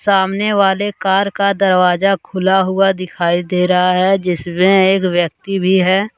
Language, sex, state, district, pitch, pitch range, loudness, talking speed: Hindi, male, Jharkhand, Deoghar, 190 Hz, 180-195 Hz, -14 LUFS, 155 wpm